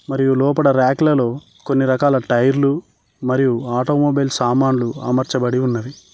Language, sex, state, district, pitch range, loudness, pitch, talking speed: Telugu, male, Telangana, Mahabubabad, 125-140 Hz, -17 LUFS, 130 Hz, 105 wpm